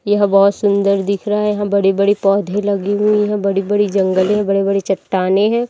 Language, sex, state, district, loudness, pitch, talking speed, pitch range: Hindi, female, Chhattisgarh, Raipur, -15 LUFS, 200 Hz, 190 wpm, 195-205 Hz